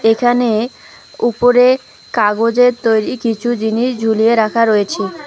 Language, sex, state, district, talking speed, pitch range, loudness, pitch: Bengali, female, West Bengal, Alipurduar, 100 wpm, 220-245 Hz, -14 LUFS, 230 Hz